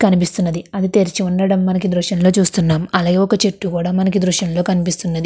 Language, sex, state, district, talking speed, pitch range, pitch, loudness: Telugu, female, Andhra Pradesh, Krishna, 160 wpm, 175-195 Hz, 185 Hz, -16 LUFS